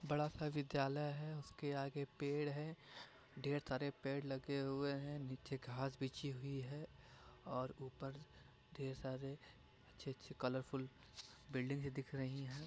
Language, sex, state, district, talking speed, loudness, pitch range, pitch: Hindi, male, Uttar Pradesh, Varanasi, 140 wpm, -46 LUFS, 130-145 Hz, 140 Hz